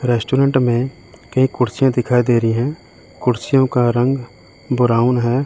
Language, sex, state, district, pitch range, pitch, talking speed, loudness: Hindi, male, Chandigarh, Chandigarh, 120-130 Hz, 125 Hz, 145 wpm, -17 LUFS